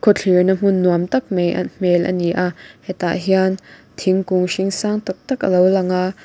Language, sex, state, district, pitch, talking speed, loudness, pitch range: Mizo, female, Mizoram, Aizawl, 185 Hz, 175 wpm, -18 LUFS, 180-195 Hz